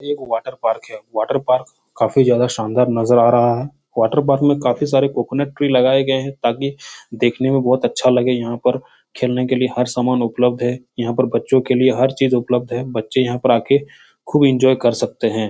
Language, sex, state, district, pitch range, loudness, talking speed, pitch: Hindi, male, Uttar Pradesh, Etah, 120-135 Hz, -17 LUFS, 215 wpm, 125 Hz